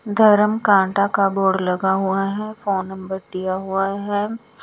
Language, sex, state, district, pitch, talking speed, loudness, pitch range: Hindi, female, Bihar, West Champaran, 195 Hz, 155 wpm, -20 LUFS, 190-210 Hz